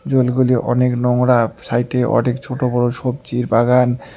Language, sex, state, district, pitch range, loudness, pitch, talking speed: Bengali, male, West Bengal, Alipurduar, 120-125 Hz, -17 LUFS, 125 Hz, 130 wpm